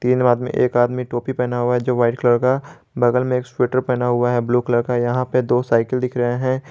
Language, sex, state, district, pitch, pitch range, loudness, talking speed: Hindi, male, Jharkhand, Garhwa, 125 Hz, 120-125 Hz, -19 LUFS, 260 wpm